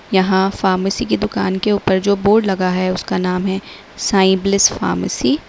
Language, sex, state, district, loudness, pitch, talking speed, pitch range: Hindi, female, Uttar Pradesh, Lalitpur, -16 LUFS, 190 Hz, 185 wpm, 190-200 Hz